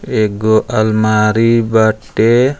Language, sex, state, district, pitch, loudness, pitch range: Bhojpuri, male, Uttar Pradesh, Deoria, 110 Hz, -13 LUFS, 110-115 Hz